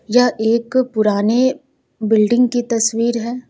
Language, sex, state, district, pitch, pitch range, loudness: Hindi, female, Uttar Pradesh, Lucknow, 235 Hz, 220-245 Hz, -16 LUFS